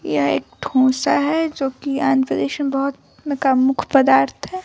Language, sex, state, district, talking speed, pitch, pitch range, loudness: Hindi, female, Bihar, Vaishali, 165 wpm, 270 Hz, 260-285 Hz, -18 LUFS